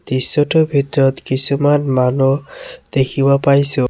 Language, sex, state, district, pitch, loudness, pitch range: Assamese, male, Assam, Sonitpur, 140 Hz, -14 LUFS, 135-145 Hz